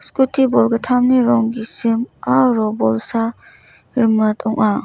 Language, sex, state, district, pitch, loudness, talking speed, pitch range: Garo, female, Meghalaya, West Garo Hills, 230 Hz, -16 LUFS, 100 wpm, 220-245 Hz